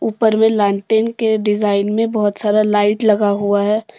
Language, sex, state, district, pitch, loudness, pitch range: Hindi, female, Jharkhand, Deoghar, 210 Hz, -15 LUFS, 205-220 Hz